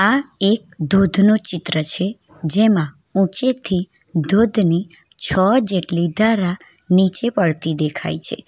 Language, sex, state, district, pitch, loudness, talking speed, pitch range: Gujarati, female, Gujarat, Valsad, 185 Hz, -17 LUFS, 105 wpm, 165-210 Hz